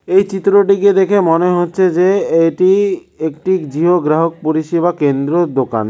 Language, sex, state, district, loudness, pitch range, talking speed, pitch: Bengali, male, West Bengal, Cooch Behar, -13 LUFS, 160-190 Hz, 130 wpm, 175 Hz